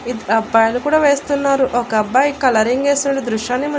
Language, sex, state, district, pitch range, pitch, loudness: Telugu, female, Andhra Pradesh, Annamaya, 225-280 Hz, 255 Hz, -16 LUFS